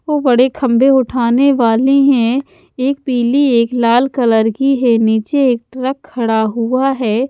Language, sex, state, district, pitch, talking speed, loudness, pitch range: Hindi, female, Haryana, Charkhi Dadri, 255 Hz, 155 wpm, -13 LUFS, 235-275 Hz